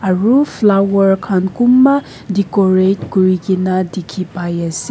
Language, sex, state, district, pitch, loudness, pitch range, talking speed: Nagamese, female, Nagaland, Kohima, 190 Hz, -14 LUFS, 185-200 Hz, 135 wpm